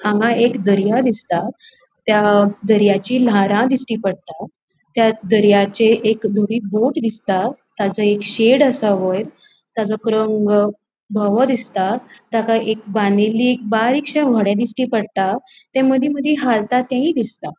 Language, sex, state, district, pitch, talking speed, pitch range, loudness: Konkani, female, Goa, North and South Goa, 220 Hz, 125 wpm, 205-245 Hz, -17 LUFS